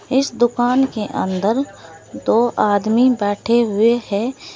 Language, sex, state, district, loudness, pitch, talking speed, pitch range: Hindi, female, Uttar Pradesh, Saharanpur, -17 LUFS, 235 Hz, 120 wpm, 210-255 Hz